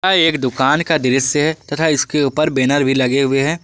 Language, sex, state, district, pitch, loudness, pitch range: Hindi, male, Jharkhand, Garhwa, 145 Hz, -15 LUFS, 135-155 Hz